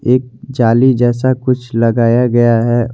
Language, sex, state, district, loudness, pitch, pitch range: Hindi, male, Jharkhand, Garhwa, -12 LUFS, 120 Hz, 115-125 Hz